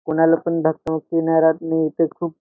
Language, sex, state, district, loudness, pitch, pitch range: Marathi, male, Maharashtra, Nagpur, -19 LUFS, 160 Hz, 160-165 Hz